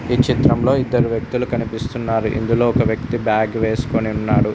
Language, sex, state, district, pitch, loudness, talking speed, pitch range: Telugu, male, Telangana, Mahabubabad, 120 Hz, -18 LUFS, 145 wpm, 110-125 Hz